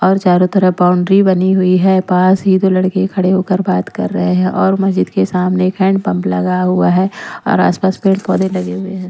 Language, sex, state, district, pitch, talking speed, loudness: Hindi, female, Bihar, Patna, 185 Hz, 220 wpm, -13 LUFS